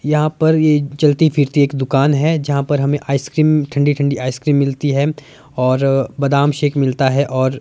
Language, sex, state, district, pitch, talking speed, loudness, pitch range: Hindi, male, Himachal Pradesh, Shimla, 145 Hz, 180 wpm, -15 LUFS, 135-150 Hz